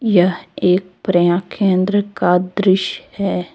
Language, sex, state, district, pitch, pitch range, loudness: Hindi, female, Jharkhand, Deoghar, 185 Hz, 180-195 Hz, -17 LUFS